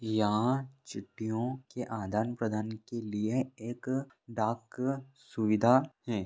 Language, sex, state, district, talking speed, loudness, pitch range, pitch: Hindi, male, Bihar, Vaishali, 105 wpm, -33 LUFS, 110-130 Hz, 115 Hz